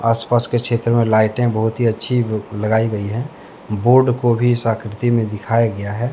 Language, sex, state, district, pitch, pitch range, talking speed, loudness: Hindi, male, Jharkhand, Deoghar, 115 Hz, 110-120 Hz, 195 wpm, -17 LUFS